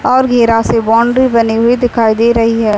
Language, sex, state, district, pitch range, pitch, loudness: Hindi, female, Uttar Pradesh, Deoria, 225-245 Hz, 230 Hz, -10 LUFS